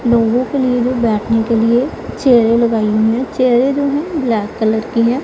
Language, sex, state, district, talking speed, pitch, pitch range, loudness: Hindi, female, Punjab, Pathankot, 205 wpm, 235 Hz, 225-255 Hz, -14 LUFS